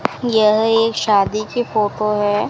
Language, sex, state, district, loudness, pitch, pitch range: Hindi, female, Rajasthan, Bikaner, -17 LUFS, 215 Hz, 210-225 Hz